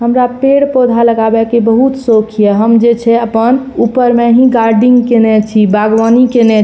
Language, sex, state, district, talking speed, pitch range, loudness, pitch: Maithili, female, Bihar, Purnia, 180 wpm, 225-245 Hz, -9 LUFS, 235 Hz